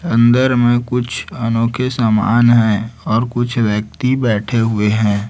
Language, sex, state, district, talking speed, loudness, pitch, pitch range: Hindi, male, Chhattisgarh, Raipur, 135 wpm, -15 LUFS, 115 Hz, 110-120 Hz